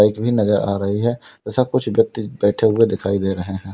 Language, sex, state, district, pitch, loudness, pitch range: Hindi, male, Uttar Pradesh, Lalitpur, 105 Hz, -19 LUFS, 100-115 Hz